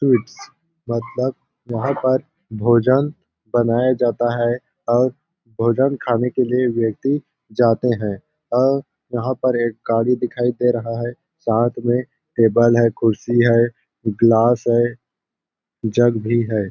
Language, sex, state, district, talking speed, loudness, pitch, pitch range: Hindi, male, Chhattisgarh, Balrampur, 135 wpm, -19 LUFS, 120 Hz, 115-130 Hz